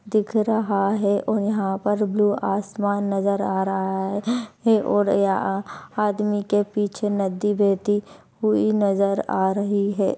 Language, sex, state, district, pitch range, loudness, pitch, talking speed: Hindi, male, Bihar, Madhepura, 195-210 Hz, -22 LUFS, 205 Hz, 155 wpm